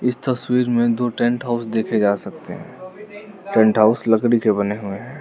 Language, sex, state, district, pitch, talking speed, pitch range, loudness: Hindi, male, Arunachal Pradesh, Lower Dibang Valley, 120 Hz, 185 wpm, 110-125 Hz, -19 LUFS